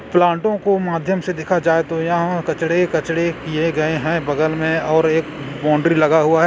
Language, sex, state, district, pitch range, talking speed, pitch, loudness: Hindi, male, Chhattisgarh, Korba, 160-170 Hz, 185 wpm, 165 Hz, -18 LUFS